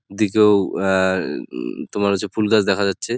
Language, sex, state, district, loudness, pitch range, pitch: Bengali, male, West Bengal, Jalpaiguri, -19 LUFS, 100-105 Hz, 100 Hz